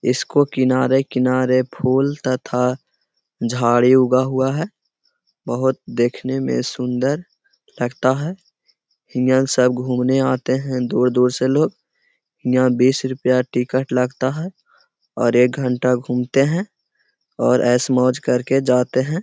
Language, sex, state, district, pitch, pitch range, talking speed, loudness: Hindi, male, Bihar, Gaya, 130 Hz, 125-135 Hz, 120 wpm, -18 LUFS